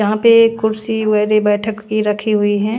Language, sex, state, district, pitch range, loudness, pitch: Hindi, female, Punjab, Pathankot, 210-220 Hz, -15 LUFS, 215 Hz